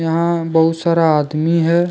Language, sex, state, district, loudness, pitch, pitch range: Hindi, male, Jharkhand, Deoghar, -15 LUFS, 165 Hz, 160-170 Hz